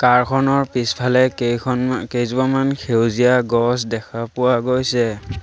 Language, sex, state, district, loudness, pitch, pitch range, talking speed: Assamese, male, Assam, Sonitpur, -18 LUFS, 125 Hz, 120-130 Hz, 110 wpm